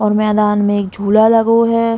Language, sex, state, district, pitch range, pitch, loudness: Bundeli, female, Uttar Pradesh, Hamirpur, 205-230 Hz, 215 Hz, -13 LUFS